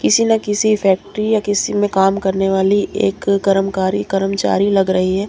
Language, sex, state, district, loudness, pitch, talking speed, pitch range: Hindi, female, Bihar, Katihar, -16 LUFS, 195 Hz, 180 wpm, 190-205 Hz